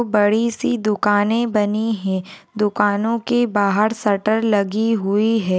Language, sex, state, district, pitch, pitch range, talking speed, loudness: Hindi, female, Bihar, Jahanabad, 215 Hz, 205-225 Hz, 130 wpm, -19 LUFS